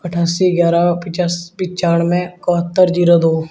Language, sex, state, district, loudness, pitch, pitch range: Hindi, male, Uttar Pradesh, Shamli, -15 LUFS, 175 Hz, 170-180 Hz